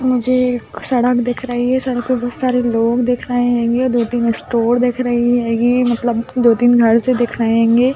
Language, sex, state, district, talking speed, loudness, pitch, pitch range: Hindi, female, Uttar Pradesh, Budaun, 195 wpm, -15 LUFS, 245 Hz, 235-250 Hz